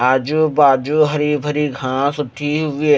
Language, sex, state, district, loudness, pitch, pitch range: Hindi, male, Haryana, Rohtak, -17 LUFS, 150 Hz, 135-150 Hz